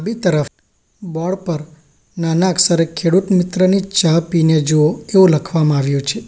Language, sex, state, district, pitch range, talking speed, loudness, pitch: Gujarati, male, Gujarat, Valsad, 155-185 Hz, 145 wpm, -15 LUFS, 170 Hz